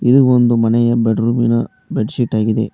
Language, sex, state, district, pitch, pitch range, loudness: Kannada, male, Karnataka, Koppal, 115 Hz, 110-120 Hz, -15 LUFS